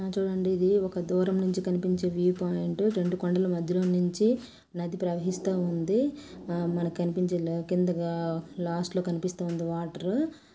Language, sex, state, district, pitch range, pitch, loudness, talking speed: Telugu, female, Telangana, Nalgonda, 175-185 Hz, 180 Hz, -29 LUFS, 140 wpm